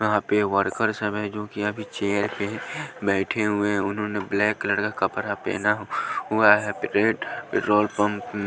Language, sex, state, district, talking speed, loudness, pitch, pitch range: Hindi, male, Punjab, Pathankot, 170 wpm, -24 LUFS, 105 Hz, 100-105 Hz